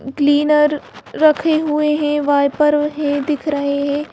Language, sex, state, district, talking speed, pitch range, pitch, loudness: Hindi, female, Madhya Pradesh, Bhopal, 130 wpm, 285-300 Hz, 295 Hz, -16 LUFS